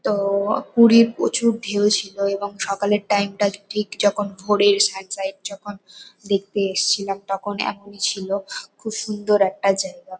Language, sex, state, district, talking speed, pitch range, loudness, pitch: Bengali, female, West Bengal, Kolkata, 130 wpm, 195-210 Hz, -20 LUFS, 200 Hz